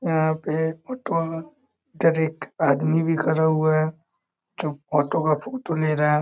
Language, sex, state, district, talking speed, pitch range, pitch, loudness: Hindi, male, Bihar, East Champaran, 175 wpm, 155-165 Hz, 160 Hz, -23 LUFS